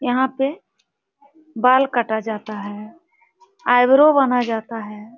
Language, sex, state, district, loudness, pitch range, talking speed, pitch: Hindi, female, Bihar, Supaul, -18 LUFS, 220-290 Hz, 115 wpm, 250 Hz